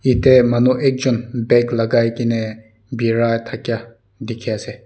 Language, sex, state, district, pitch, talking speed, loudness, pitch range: Nagamese, male, Nagaland, Dimapur, 115 Hz, 135 wpm, -17 LUFS, 115-125 Hz